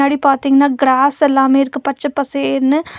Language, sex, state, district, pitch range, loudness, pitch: Tamil, female, Tamil Nadu, Nilgiris, 275-285 Hz, -14 LUFS, 280 Hz